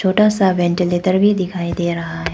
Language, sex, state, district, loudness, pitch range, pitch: Hindi, female, Arunachal Pradesh, Papum Pare, -17 LUFS, 175-190 Hz, 180 Hz